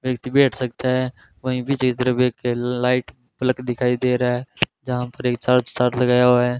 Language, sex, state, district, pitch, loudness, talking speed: Hindi, male, Rajasthan, Bikaner, 125 Hz, -21 LUFS, 170 wpm